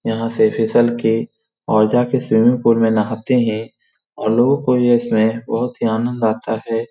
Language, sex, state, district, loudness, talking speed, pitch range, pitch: Hindi, male, Uttar Pradesh, Muzaffarnagar, -17 LUFS, 180 wpm, 110-120 Hz, 115 Hz